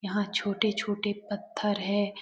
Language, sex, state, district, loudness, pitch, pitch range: Hindi, male, Bihar, Jamui, -30 LUFS, 205 Hz, 200-210 Hz